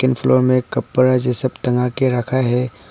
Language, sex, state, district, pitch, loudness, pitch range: Hindi, male, Arunachal Pradesh, Papum Pare, 125 Hz, -17 LUFS, 125-130 Hz